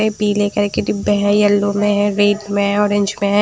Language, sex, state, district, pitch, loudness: Hindi, female, Punjab, Kapurthala, 205 Hz, -16 LUFS